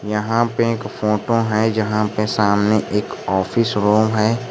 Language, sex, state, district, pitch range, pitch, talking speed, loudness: Hindi, male, Jharkhand, Garhwa, 105-115 Hz, 110 Hz, 160 wpm, -18 LUFS